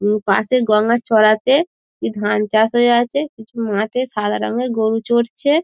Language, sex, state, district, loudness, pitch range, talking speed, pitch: Bengali, female, West Bengal, Dakshin Dinajpur, -17 LUFS, 215-250 Hz, 170 wpm, 225 Hz